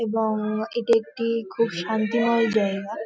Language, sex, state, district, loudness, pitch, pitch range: Bengali, female, West Bengal, North 24 Parganas, -23 LUFS, 225 Hz, 215-230 Hz